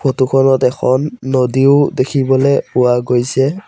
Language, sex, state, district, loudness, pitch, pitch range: Assamese, male, Assam, Sonitpur, -13 LUFS, 130 Hz, 125-135 Hz